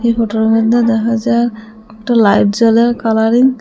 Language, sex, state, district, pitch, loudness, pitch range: Bengali, female, Assam, Hailakandi, 230 Hz, -12 LUFS, 220-235 Hz